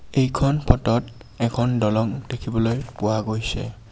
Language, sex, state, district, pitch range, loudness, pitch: Assamese, male, Assam, Kamrup Metropolitan, 110-125 Hz, -23 LUFS, 115 Hz